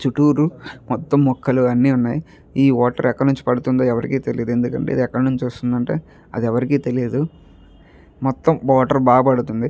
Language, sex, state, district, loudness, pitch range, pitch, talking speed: Telugu, male, Andhra Pradesh, Chittoor, -18 LUFS, 125-135 Hz, 130 Hz, 150 wpm